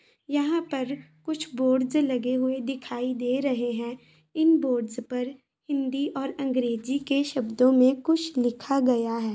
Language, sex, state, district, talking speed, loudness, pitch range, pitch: Hindi, female, Bihar, Vaishali, 145 wpm, -26 LUFS, 245-280 Hz, 260 Hz